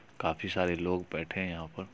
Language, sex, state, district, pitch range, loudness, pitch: Hindi, male, Bihar, Supaul, 85-95 Hz, -33 LUFS, 90 Hz